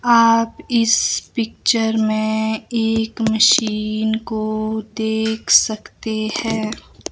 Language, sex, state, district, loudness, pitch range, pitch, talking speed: Hindi, female, Himachal Pradesh, Shimla, -18 LUFS, 220-230 Hz, 220 Hz, 85 wpm